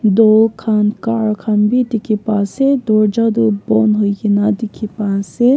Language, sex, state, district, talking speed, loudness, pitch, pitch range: Nagamese, female, Nagaland, Kohima, 160 wpm, -15 LUFS, 215 Hz, 210-225 Hz